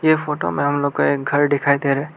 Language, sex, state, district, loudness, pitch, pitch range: Hindi, male, Arunachal Pradesh, Lower Dibang Valley, -19 LUFS, 145 Hz, 140-150 Hz